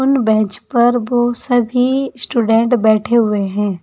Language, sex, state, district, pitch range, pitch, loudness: Hindi, female, Uttar Pradesh, Saharanpur, 215-245 Hz, 235 Hz, -15 LUFS